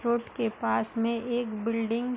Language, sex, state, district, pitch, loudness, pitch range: Hindi, female, Uttar Pradesh, Hamirpur, 235 Hz, -29 LUFS, 225-240 Hz